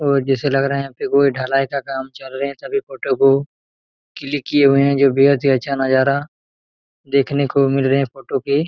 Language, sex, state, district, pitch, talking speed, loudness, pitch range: Hindi, male, Bihar, Araria, 140 Hz, 230 wpm, -17 LUFS, 135-140 Hz